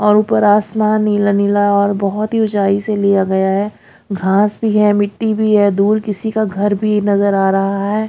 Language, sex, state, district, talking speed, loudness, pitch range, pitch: Hindi, female, Haryana, Jhajjar, 210 wpm, -14 LUFS, 200-215 Hz, 205 Hz